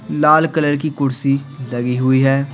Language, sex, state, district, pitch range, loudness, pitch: Hindi, male, Bihar, Patna, 130-150 Hz, -16 LUFS, 135 Hz